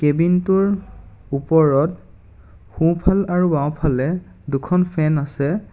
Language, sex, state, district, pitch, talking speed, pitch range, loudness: Assamese, male, Assam, Kamrup Metropolitan, 155 Hz, 95 wpm, 135-180 Hz, -19 LUFS